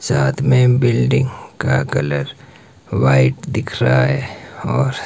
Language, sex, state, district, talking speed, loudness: Hindi, male, Himachal Pradesh, Shimla, 120 wpm, -17 LUFS